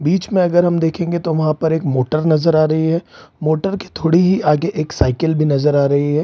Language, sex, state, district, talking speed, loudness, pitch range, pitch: Hindi, male, Bihar, Saran, 250 wpm, -16 LUFS, 150-170 Hz, 160 Hz